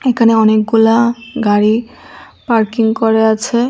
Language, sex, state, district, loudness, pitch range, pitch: Bengali, female, Tripura, West Tripura, -13 LUFS, 220-235 Hz, 225 Hz